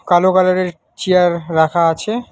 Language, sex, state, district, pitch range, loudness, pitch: Bengali, male, West Bengal, Alipurduar, 170-185 Hz, -15 LUFS, 180 Hz